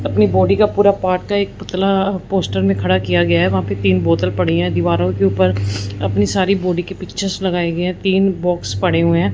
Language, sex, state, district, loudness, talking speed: Hindi, male, Punjab, Fazilka, -16 LUFS, 230 wpm